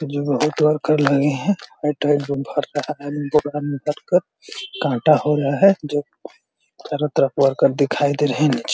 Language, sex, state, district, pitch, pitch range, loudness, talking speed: Hindi, male, Uttar Pradesh, Ghazipur, 150 Hz, 145-150 Hz, -19 LUFS, 130 wpm